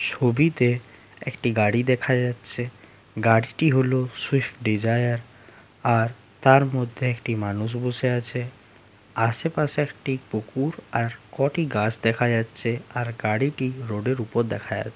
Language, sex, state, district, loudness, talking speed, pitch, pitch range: Bengali, male, West Bengal, Jalpaiguri, -24 LUFS, 120 wpm, 120 Hz, 110-130 Hz